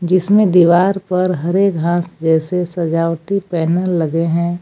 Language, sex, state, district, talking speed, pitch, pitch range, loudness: Hindi, female, Jharkhand, Palamu, 130 wpm, 175 Hz, 165-185 Hz, -15 LUFS